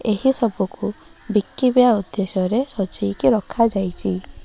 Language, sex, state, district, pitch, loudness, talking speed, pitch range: Odia, female, Odisha, Malkangiri, 210 Hz, -19 LUFS, 135 wpm, 185-230 Hz